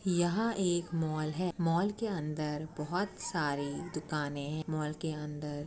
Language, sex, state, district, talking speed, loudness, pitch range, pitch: Hindi, female, Uttar Pradesh, Etah, 160 wpm, -34 LUFS, 150-175 Hz, 155 Hz